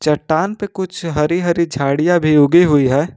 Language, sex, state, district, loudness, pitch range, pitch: Hindi, male, Jharkhand, Ranchi, -15 LUFS, 150-175 Hz, 165 Hz